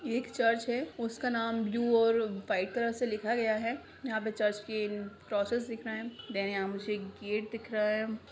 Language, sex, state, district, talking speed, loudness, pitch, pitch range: Hindi, female, Jharkhand, Sahebganj, 215 wpm, -33 LUFS, 220 Hz, 210-235 Hz